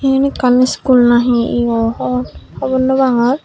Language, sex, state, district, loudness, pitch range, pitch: Chakma, female, Tripura, Dhalai, -13 LUFS, 235-265 Hz, 250 Hz